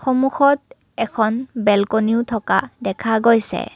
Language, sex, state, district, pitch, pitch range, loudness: Assamese, female, Assam, Kamrup Metropolitan, 230 Hz, 220-260 Hz, -18 LUFS